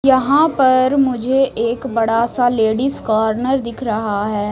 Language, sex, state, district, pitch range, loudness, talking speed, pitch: Hindi, female, Odisha, Malkangiri, 220-265 Hz, -16 LUFS, 145 wpm, 245 Hz